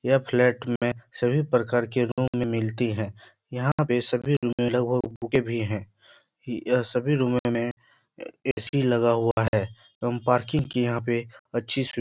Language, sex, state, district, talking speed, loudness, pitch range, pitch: Hindi, male, Bihar, Jahanabad, 175 wpm, -26 LUFS, 115-125 Hz, 120 Hz